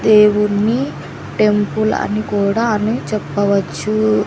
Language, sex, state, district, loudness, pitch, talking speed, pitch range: Telugu, female, Andhra Pradesh, Sri Satya Sai, -16 LUFS, 210 Hz, 85 wpm, 200-215 Hz